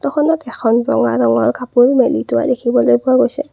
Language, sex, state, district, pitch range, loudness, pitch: Assamese, female, Assam, Kamrup Metropolitan, 225-265 Hz, -14 LUFS, 245 Hz